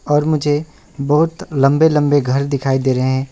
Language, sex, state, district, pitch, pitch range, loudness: Hindi, male, West Bengal, Alipurduar, 145 Hz, 135-150 Hz, -16 LUFS